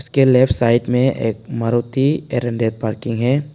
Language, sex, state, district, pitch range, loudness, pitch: Hindi, male, Arunachal Pradesh, Papum Pare, 115-130 Hz, -17 LUFS, 120 Hz